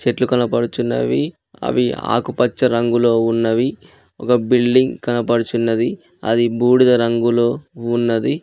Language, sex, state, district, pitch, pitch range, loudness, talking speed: Telugu, male, Telangana, Mahabubabad, 120 Hz, 115-125 Hz, -17 LUFS, 90 wpm